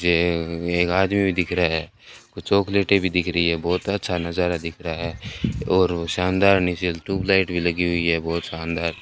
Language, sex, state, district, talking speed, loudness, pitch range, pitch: Hindi, male, Rajasthan, Bikaner, 195 wpm, -22 LUFS, 85-95 Hz, 90 Hz